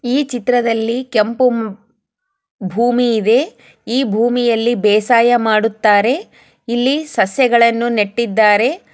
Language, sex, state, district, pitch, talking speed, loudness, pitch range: Kannada, female, Karnataka, Chamarajanagar, 235 Hz, 80 wpm, -14 LUFS, 220-250 Hz